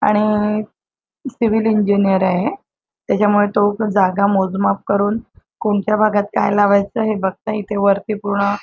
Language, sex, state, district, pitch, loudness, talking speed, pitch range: Marathi, female, Maharashtra, Chandrapur, 205 Hz, -17 LUFS, 125 wpm, 200-215 Hz